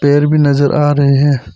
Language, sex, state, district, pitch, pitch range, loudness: Hindi, male, Arunachal Pradesh, Papum Pare, 145 Hz, 140-145 Hz, -11 LUFS